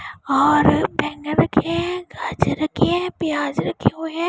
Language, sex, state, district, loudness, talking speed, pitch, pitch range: Hindi, female, Punjab, Pathankot, -20 LUFS, 125 wpm, 325 Hz, 300-350 Hz